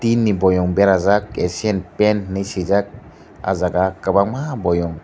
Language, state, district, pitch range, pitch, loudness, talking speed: Kokborok, Tripura, Dhalai, 90-105 Hz, 100 Hz, -18 LUFS, 130 wpm